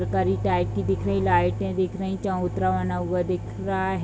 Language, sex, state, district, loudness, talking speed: Hindi, female, Bihar, Bhagalpur, -25 LUFS, 210 wpm